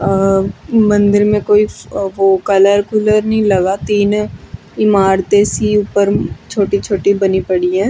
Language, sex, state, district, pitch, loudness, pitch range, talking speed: Hindi, female, Chandigarh, Chandigarh, 200 Hz, -13 LUFS, 195-210 Hz, 135 wpm